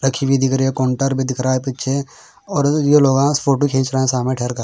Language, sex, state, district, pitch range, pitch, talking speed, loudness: Hindi, male, Bihar, Patna, 130-140 Hz, 135 Hz, 270 wpm, -17 LUFS